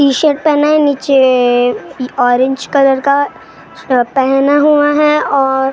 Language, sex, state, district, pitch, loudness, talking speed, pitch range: Hindi, female, Maharashtra, Gondia, 275 Hz, -11 LUFS, 115 wpm, 260-290 Hz